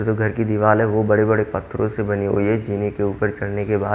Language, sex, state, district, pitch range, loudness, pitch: Hindi, male, Haryana, Jhajjar, 100-110 Hz, -20 LUFS, 105 Hz